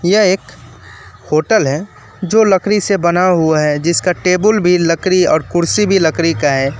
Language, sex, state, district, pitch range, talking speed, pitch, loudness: Hindi, male, West Bengal, Alipurduar, 155-190 Hz, 175 wpm, 175 Hz, -13 LUFS